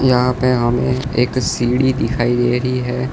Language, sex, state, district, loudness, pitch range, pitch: Hindi, male, Gujarat, Valsad, -17 LUFS, 120-130 Hz, 125 Hz